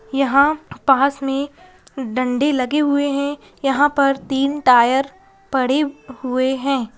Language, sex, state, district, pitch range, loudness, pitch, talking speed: Hindi, female, Bihar, Madhepura, 260-290 Hz, -18 LUFS, 275 Hz, 120 wpm